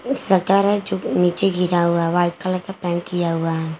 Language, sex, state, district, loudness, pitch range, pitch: Hindi, female, Jharkhand, Garhwa, -19 LUFS, 170-195 Hz, 180 Hz